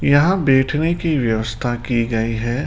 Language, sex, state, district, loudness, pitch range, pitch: Hindi, male, Rajasthan, Jaipur, -18 LUFS, 115-145 Hz, 125 Hz